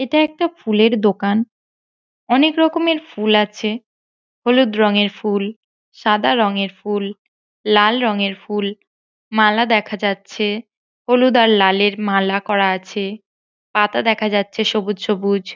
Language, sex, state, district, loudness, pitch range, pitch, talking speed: Bengali, female, West Bengal, Paschim Medinipur, -17 LUFS, 200-230 Hz, 210 Hz, 140 wpm